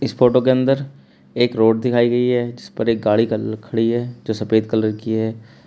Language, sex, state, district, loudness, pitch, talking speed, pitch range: Hindi, male, Uttar Pradesh, Shamli, -19 LUFS, 115 Hz, 220 wpm, 110-125 Hz